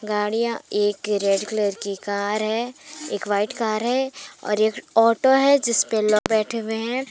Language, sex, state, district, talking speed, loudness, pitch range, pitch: Hindi, female, Jharkhand, Garhwa, 170 wpm, -22 LUFS, 210-235 Hz, 220 Hz